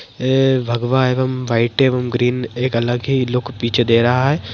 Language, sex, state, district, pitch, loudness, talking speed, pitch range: Hindi, female, Bihar, Madhepura, 125 Hz, -17 LUFS, 185 wpm, 120-130 Hz